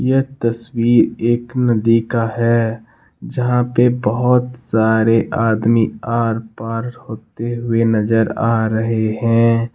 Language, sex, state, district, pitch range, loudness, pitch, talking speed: Hindi, male, Jharkhand, Deoghar, 115-120 Hz, -17 LUFS, 115 Hz, 115 wpm